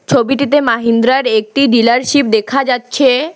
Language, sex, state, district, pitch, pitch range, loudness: Bengali, female, West Bengal, Alipurduar, 255 Hz, 235-275 Hz, -12 LUFS